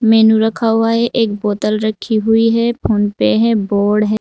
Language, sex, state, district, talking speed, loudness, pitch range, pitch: Hindi, female, Uttar Pradesh, Saharanpur, 200 wpm, -14 LUFS, 210-225 Hz, 220 Hz